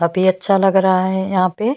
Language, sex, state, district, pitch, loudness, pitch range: Hindi, female, Chhattisgarh, Bastar, 190 Hz, -16 LUFS, 185-195 Hz